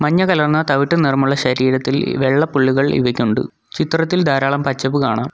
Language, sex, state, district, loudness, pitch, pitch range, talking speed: Malayalam, male, Kerala, Kollam, -16 LUFS, 135 Hz, 130-150 Hz, 135 wpm